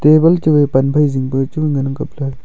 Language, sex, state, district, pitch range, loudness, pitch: Wancho, male, Arunachal Pradesh, Longding, 135-150 Hz, -15 LUFS, 145 Hz